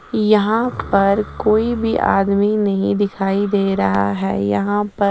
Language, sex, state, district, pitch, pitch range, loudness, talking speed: Hindi, female, Chandigarh, Chandigarh, 200 Hz, 195-215 Hz, -17 LUFS, 150 wpm